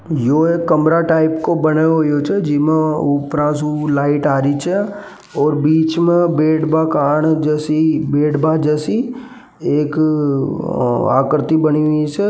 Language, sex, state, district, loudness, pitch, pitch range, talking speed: Marwari, male, Rajasthan, Nagaur, -15 LUFS, 155 Hz, 150-160 Hz, 125 wpm